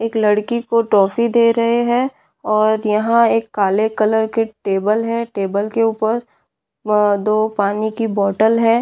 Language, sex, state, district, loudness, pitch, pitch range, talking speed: Hindi, female, Bihar, Madhepura, -17 LUFS, 220 Hz, 210-230 Hz, 155 wpm